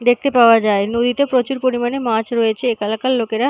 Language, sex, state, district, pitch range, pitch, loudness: Bengali, female, West Bengal, North 24 Parganas, 225-255 Hz, 240 Hz, -16 LUFS